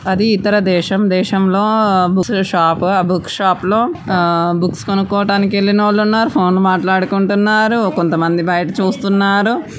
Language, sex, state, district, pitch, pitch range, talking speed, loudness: Telugu, male, Andhra Pradesh, Guntur, 195 Hz, 180-205 Hz, 110 wpm, -14 LUFS